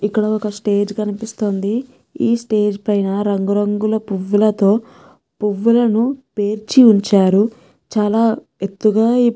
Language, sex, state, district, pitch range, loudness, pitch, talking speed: Telugu, female, Telangana, Nalgonda, 205-225 Hz, -17 LUFS, 210 Hz, 90 wpm